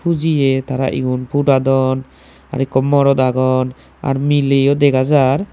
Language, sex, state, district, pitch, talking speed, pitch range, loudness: Chakma, male, Tripura, Dhalai, 135 Hz, 130 wpm, 130-140 Hz, -15 LUFS